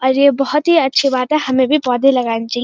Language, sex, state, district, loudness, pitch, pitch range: Hindi, female, Uttarakhand, Uttarkashi, -14 LUFS, 265 Hz, 250-280 Hz